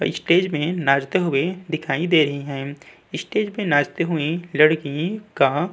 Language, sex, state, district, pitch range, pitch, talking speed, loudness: Hindi, male, Uttar Pradesh, Budaun, 145-180 Hz, 160 Hz, 170 wpm, -21 LUFS